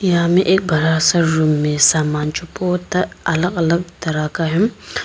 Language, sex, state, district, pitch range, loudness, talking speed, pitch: Hindi, female, Arunachal Pradesh, Papum Pare, 155-180 Hz, -17 LUFS, 180 wpm, 165 Hz